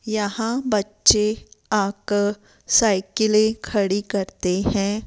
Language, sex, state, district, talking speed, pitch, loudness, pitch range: Hindi, female, Rajasthan, Jaipur, 85 wpm, 210 Hz, -21 LUFS, 200-220 Hz